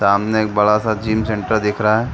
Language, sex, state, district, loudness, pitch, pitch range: Hindi, male, Chhattisgarh, Bastar, -17 LUFS, 110 Hz, 105-110 Hz